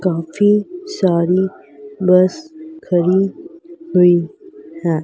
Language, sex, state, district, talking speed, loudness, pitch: Hindi, female, Madhya Pradesh, Dhar, 70 wpm, -16 LUFS, 195 Hz